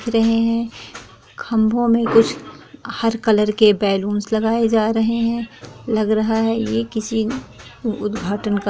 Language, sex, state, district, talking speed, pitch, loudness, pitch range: Hindi, female, Bihar, East Champaran, 150 wpm, 225 Hz, -19 LUFS, 215-230 Hz